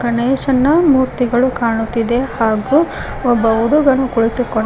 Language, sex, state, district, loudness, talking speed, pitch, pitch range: Kannada, female, Karnataka, Koppal, -15 LUFS, 90 wpm, 245 Hz, 230-265 Hz